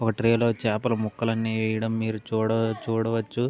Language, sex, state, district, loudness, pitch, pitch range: Telugu, male, Andhra Pradesh, Visakhapatnam, -26 LUFS, 115 Hz, 110-115 Hz